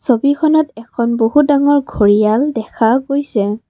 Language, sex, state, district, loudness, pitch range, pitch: Assamese, female, Assam, Kamrup Metropolitan, -14 LUFS, 225-285 Hz, 245 Hz